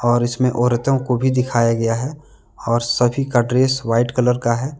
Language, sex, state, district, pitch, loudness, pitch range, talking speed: Hindi, male, Jharkhand, Deoghar, 120 Hz, -18 LUFS, 120-130 Hz, 200 wpm